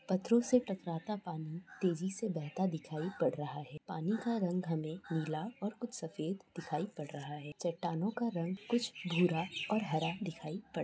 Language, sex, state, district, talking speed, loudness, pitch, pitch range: Hindi, female, Jharkhand, Jamtara, 185 wpm, -37 LUFS, 175 Hz, 160-200 Hz